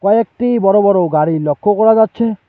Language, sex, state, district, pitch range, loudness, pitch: Bengali, male, West Bengal, Alipurduar, 185-225 Hz, -13 LUFS, 205 Hz